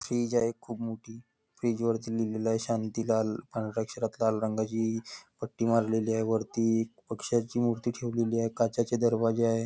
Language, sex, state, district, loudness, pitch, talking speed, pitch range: Marathi, male, Maharashtra, Nagpur, -30 LUFS, 115 Hz, 135 wpm, 110-115 Hz